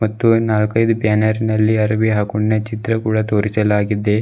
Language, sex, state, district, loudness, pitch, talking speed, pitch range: Kannada, male, Karnataka, Bidar, -17 LUFS, 110 Hz, 130 wpm, 105-110 Hz